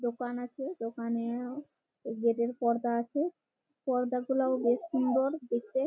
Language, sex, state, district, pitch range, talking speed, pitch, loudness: Bengali, female, West Bengal, Malda, 235-265 Hz, 110 wpm, 245 Hz, -32 LUFS